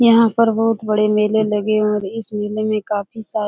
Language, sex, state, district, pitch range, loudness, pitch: Hindi, female, Bihar, Jahanabad, 210-225 Hz, -18 LUFS, 215 Hz